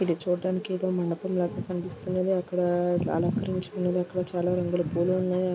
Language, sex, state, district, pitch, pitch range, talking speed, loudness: Telugu, female, Andhra Pradesh, Guntur, 180 Hz, 175-185 Hz, 110 wpm, -28 LUFS